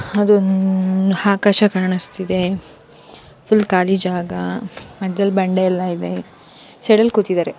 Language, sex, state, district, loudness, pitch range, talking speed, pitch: Kannada, female, Karnataka, Shimoga, -17 LUFS, 185-200 Hz, 105 wpm, 190 Hz